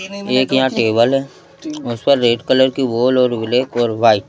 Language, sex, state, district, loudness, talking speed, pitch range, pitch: Hindi, male, Madhya Pradesh, Bhopal, -15 LUFS, 210 wpm, 120-135 Hz, 130 Hz